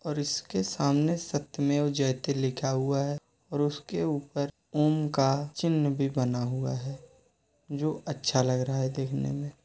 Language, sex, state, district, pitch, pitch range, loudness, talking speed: Hindi, male, Uttar Pradesh, Muzaffarnagar, 140 Hz, 130-145 Hz, -29 LUFS, 155 wpm